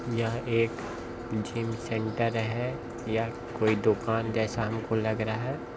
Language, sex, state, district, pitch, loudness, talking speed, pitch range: Maithili, male, Bihar, Bhagalpur, 115 Hz, -30 LUFS, 135 wpm, 110-115 Hz